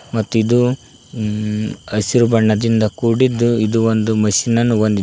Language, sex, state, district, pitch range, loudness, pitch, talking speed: Kannada, male, Karnataka, Koppal, 110-120 Hz, -16 LUFS, 115 Hz, 120 wpm